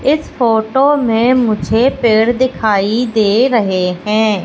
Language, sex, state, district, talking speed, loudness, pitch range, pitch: Hindi, female, Madhya Pradesh, Katni, 120 wpm, -13 LUFS, 215-255 Hz, 225 Hz